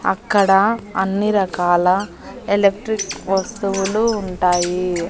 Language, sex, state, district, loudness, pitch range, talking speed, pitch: Telugu, female, Andhra Pradesh, Annamaya, -18 LUFS, 185-210 Hz, 70 wpm, 195 Hz